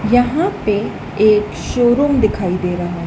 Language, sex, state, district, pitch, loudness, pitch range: Hindi, female, Madhya Pradesh, Dhar, 215 Hz, -16 LUFS, 185-245 Hz